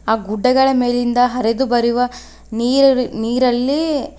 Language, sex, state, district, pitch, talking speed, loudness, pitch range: Kannada, female, Karnataka, Koppal, 245 Hz, 85 wpm, -16 LUFS, 235-265 Hz